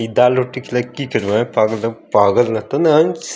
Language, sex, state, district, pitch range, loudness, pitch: Hindi, male, Chandigarh, Chandigarh, 115-130 Hz, -16 LUFS, 125 Hz